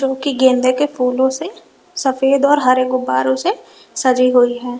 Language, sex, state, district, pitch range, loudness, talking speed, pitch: Hindi, female, Uttar Pradesh, Lalitpur, 250-275 Hz, -15 LUFS, 160 wpm, 255 Hz